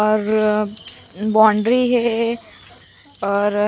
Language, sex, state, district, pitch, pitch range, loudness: Chhattisgarhi, female, Chhattisgarh, Raigarh, 215 Hz, 200-220 Hz, -18 LUFS